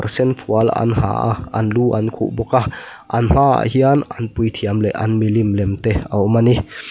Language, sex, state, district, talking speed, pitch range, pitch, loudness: Mizo, male, Mizoram, Aizawl, 215 wpm, 105-120 Hz, 110 Hz, -17 LUFS